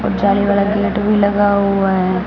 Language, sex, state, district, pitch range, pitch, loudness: Hindi, female, Punjab, Fazilka, 195-205 Hz, 200 Hz, -15 LUFS